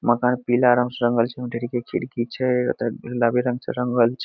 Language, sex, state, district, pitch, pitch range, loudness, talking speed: Maithili, male, Bihar, Madhepura, 125 Hz, 120-125 Hz, -22 LUFS, 240 wpm